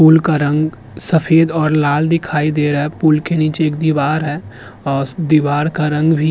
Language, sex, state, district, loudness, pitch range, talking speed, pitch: Hindi, male, Uttar Pradesh, Muzaffarnagar, -15 LUFS, 145-160 Hz, 210 wpm, 155 Hz